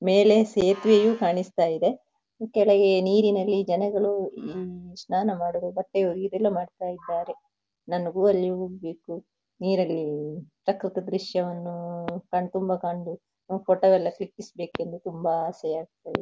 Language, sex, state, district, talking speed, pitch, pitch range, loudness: Kannada, female, Karnataka, Dakshina Kannada, 105 wpm, 185 Hz, 175-200 Hz, -25 LUFS